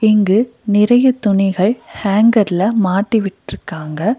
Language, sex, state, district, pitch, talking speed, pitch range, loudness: Tamil, female, Tamil Nadu, Nilgiris, 210 Hz, 85 wpm, 195-225 Hz, -14 LUFS